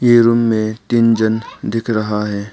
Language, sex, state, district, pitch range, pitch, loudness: Hindi, male, Arunachal Pradesh, Papum Pare, 110-115 Hz, 110 Hz, -16 LUFS